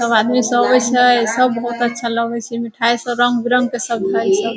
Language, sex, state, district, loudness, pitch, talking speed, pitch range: Hindi, female, Bihar, Sitamarhi, -16 LUFS, 240 Hz, 210 wpm, 235-250 Hz